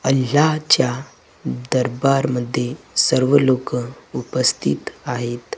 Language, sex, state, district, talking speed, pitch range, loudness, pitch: Marathi, male, Maharashtra, Gondia, 85 wpm, 120-135 Hz, -19 LUFS, 130 Hz